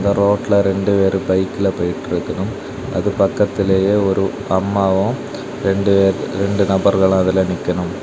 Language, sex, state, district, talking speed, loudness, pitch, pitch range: Tamil, male, Tamil Nadu, Kanyakumari, 110 wpm, -17 LUFS, 95 Hz, 95-100 Hz